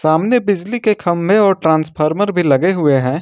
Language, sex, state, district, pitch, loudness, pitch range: Hindi, male, Jharkhand, Ranchi, 175 Hz, -14 LUFS, 155-205 Hz